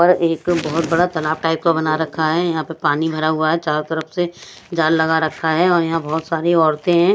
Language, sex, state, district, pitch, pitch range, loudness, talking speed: Hindi, female, Odisha, Sambalpur, 160 Hz, 155-170 Hz, -18 LUFS, 245 wpm